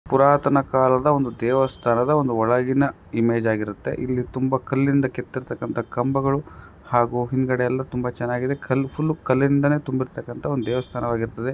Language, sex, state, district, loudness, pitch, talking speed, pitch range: Kannada, male, Karnataka, Raichur, -22 LUFS, 130 Hz, 125 wpm, 120-135 Hz